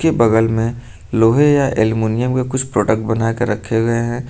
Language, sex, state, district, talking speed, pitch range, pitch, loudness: Hindi, male, Uttar Pradesh, Lucknow, 170 wpm, 110-125 Hz, 115 Hz, -16 LUFS